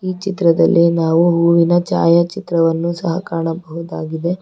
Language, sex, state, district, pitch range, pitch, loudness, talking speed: Kannada, female, Karnataka, Bangalore, 165-175 Hz, 170 Hz, -15 LUFS, 95 wpm